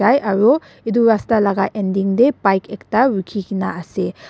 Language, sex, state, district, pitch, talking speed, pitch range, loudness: Nagamese, female, Nagaland, Dimapur, 210 Hz, 155 wpm, 195-235 Hz, -17 LUFS